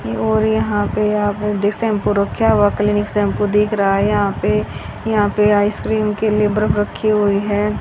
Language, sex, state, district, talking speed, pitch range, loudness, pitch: Hindi, female, Haryana, Rohtak, 185 wpm, 200-210 Hz, -17 LUFS, 205 Hz